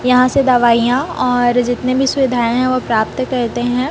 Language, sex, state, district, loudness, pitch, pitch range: Hindi, female, Chhattisgarh, Raipur, -15 LUFS, 250 Hz, 240-255 Hz